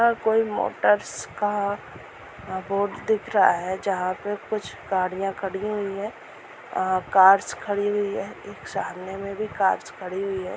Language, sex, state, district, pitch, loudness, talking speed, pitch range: Hindi, female, Chhattisgarh, Rajnandgaon, 195 Hz, -24 LUFS, 160 wpm, 185-205 Hz